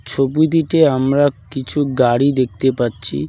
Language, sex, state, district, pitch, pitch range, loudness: Bengali, male, West Bengal, Cooch Behar, 135 Hz, 120-145 Hz, -16 LUFS